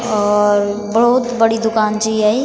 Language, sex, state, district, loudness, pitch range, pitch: Garhwali, female, Uttarakhand, Tehri Garhwal, -15 LUFS, 210-230 Hz, 215 Hz